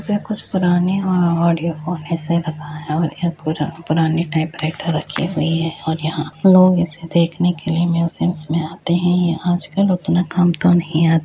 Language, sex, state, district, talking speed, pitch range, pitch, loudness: Hindi, female, Uttar Pradesh, Etah, 190 wpm, 160-175 Hz, 170 Hz, -18 LUFS